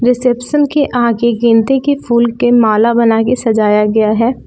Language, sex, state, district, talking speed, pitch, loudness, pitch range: Hindi, female, Jharkhand, Palamu, 175 wpm, 235 Hz, -12 LUFS, 225-250 Hz